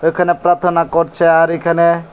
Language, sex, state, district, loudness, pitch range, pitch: Bengali, male, Tripura, West Tripura, -13 LUFS, 165-175 Hz, 170 Hz